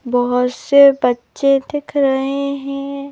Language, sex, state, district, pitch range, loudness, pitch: Hindi, female, Madhya Pradesh, Bhopal, 250-280 Hz, -16 LUFS, 275 Hz